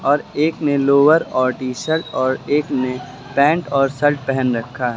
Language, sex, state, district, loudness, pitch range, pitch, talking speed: Hindi, male, Uttar Pradesh, Lucknow, -18 LUFS, 130-145 Hz, 140 Hz, 195 wpm